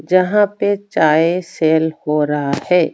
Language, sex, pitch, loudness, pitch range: Hindi, female, 165 Hz, -16 LUFS, 155-185 Hz